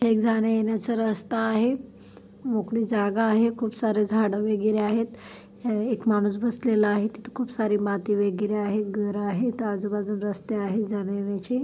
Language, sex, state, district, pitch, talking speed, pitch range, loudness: Marathi, female, Maharashtra, Chandrapur, 215 Hz, 155 wpm, 205-225 Hz, -25 LUFS